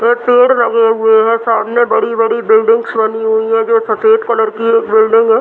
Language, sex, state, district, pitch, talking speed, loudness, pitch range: Hindi, female, Bihar, Muzaffarpur, 230 Hz, 210 wpm, -11 LUFS, 225-260 Hz